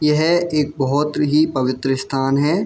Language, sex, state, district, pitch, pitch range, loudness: Hindi, male, Jharkhand, Jamtara, 150 Hz, 135-150 Hz, -18 LUFS